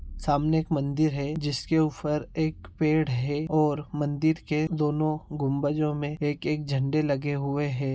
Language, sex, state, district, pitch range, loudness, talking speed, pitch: Hindi, male, Bihar, Darbhanga, 145-155 Hz, -27 LUFS, 150 wpm, 150 Hz